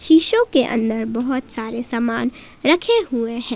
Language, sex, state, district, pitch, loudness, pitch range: Hindi, female, Jharkhand, Palamu, 245 Hz, -19 LUFS, 230-320 Hz